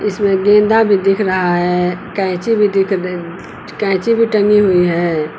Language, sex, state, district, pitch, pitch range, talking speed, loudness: Hindi, female, Uttar Pradesh, Lucknow, 195 Hz, 180-210 Hz, 165 wpm, -14 LUFS